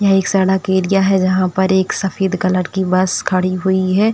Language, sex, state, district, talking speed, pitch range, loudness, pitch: Hindi, female, Uttar Pradesh, Etah, 215 wpm, 185-195 Hz, -15 LUFS, 190 Hz